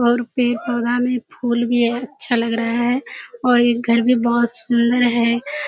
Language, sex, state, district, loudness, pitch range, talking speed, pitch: Hindi, female, Bihar, Kishanganj, -18 LUFS, 235-245 Hz, 180 wpm, 240 Hz